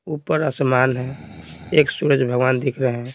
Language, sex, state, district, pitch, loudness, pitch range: Hindi, male, Bihar, Patna, 130 Hz, -19 LUFS, 125-140 Hz